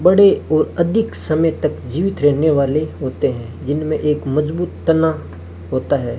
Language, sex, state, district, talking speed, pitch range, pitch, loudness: Hindi, male, Rajasthan, Bikaner, 155 wpm, 140-165 Hz, 155 Hz, -17 LUFS